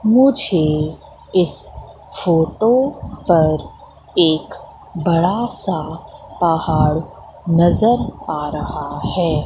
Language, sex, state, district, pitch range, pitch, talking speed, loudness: Hindi, female, Madhya Pradesh, Katni, 160-225 Hz, 170 Hz, 75 wpm, -17 LUFS